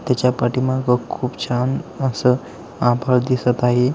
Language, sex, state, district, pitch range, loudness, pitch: Marathi, male, Maharashtra, Aurangabad, 125-130 Hz, -19 LUFS, 125 Hz